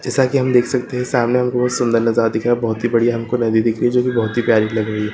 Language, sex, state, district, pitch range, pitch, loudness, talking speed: Hindi, female, Bihar, East Champaran, 115-125 Hz, 120 Hz, -17 LUFS, 315 wpm